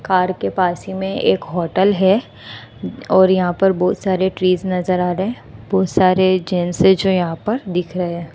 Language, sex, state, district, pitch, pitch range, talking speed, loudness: Hindi, female, Gujarat, Gandhinagar, 185 Hz, 180-190 Hz, 200 wpm, -17 LUFS